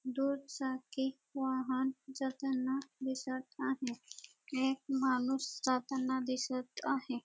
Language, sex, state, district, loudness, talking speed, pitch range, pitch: Marathi, female, Maharashtra, Dhule, -37 LUFS, 90 wpm, 260-270 Hz, 265 Hz